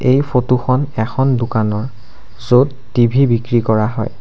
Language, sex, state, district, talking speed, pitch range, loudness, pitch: Assamese, male, Assam, Sonitpur, 130 wpm, 110-130 Hz, -15 LUFS, 120 Hz